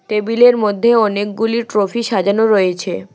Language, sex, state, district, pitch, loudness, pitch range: Bengali, female, West Bengal, Alipurduar, 210 Hz, -15 LUFS, 200-230 Hz